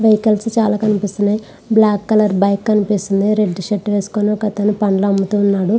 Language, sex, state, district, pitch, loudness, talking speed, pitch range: Telugu, female, Andhra Pradesh, Visakhapatnam, 210 Hz, -16 LUFS, 155 wpm, 200-215 Hz